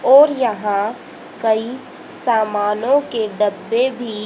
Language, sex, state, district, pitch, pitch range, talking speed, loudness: Hindi, female, Haryana, Jhajjar, 225 Hz, 210-255 Hz, 100 wpm, -18 LUFS